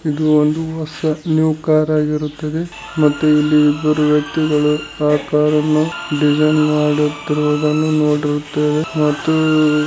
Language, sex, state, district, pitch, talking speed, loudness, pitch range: Kannada, male, Karnataka, Raichur, 150 Hz, 95 wpm, -16 LUFS, 150-155 Hz